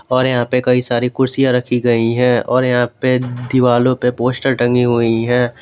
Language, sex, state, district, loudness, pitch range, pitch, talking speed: Hindi, male, Jharkhand, Garhwa, -15 LUFS, 120-125 Hz, 125 Hz, 190 wpm